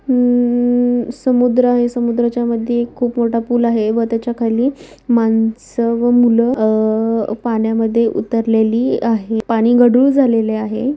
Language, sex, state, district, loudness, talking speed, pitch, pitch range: Marathi, female, Maharashtra, Aurangabad, -15 LUFS, 125 wpm, 235 Hz, 225-245 Hz